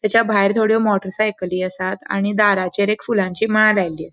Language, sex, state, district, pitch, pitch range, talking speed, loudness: Konkani, female, Goa, North and South Goa, 205 Hz, 185-215 Hz, 205 wpm, -18 LUFS